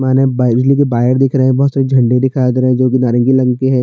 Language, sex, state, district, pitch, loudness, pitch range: Hindi, male, Chhattisgarh, Jashpur, 130 Hz, -12 LUFS, 125-135 Hz